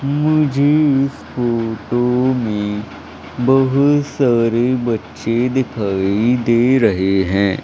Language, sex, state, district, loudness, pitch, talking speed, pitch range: Hindi, male, Madhya Pradesh, Umaria, -16 LUFS, 120 Hz, 85 wpm, 110-135 Hz